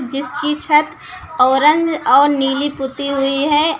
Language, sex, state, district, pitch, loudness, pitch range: Hindi, female, Uttar Pradesh, Lucknow, 290 Hz, -15 LUFS, 275-310 Hz